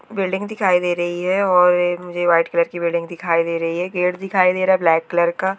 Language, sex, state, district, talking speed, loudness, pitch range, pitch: Hindi, female, West Bengal, Jalpaiguri, 260 wpm, -18 LUFS, 170-185 Hz, 175 Hz